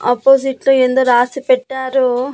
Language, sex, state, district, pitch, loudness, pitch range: Telugu, female, Andhra Pradesh, Annamaya, 260 Hz, -14 LUFS, 250-270 Hz